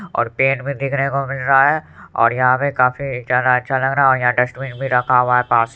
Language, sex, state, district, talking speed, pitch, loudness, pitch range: Hindi, male, Bihar, Supaul, 260 wpm, 130 Hz, -17 LUFS, 125-135 Hz